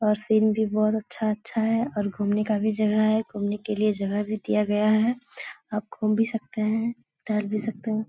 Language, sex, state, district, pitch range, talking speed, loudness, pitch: Hindi, female, Bihar, Jahanabad, 210-220 Hz, 215 wpm, -25 LUFS, 215 Hz